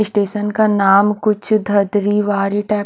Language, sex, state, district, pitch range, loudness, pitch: Hindi, female, Haryana, Charkhi Dadri, 205-210 Hz, -15 LUFS, 205 Hz